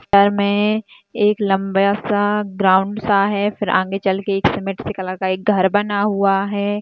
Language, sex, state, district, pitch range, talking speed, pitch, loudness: Hindi, female, Bihar, Purnia, 195-205 Hz, 175 wpm, 200 Hz, -18 LUFS